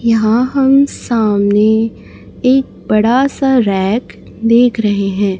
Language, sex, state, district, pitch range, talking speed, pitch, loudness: Hindi, female, Chhattisgarh, Raipur, 210-255 Hz, 120 wpm, 225 Hz, -13 LUFS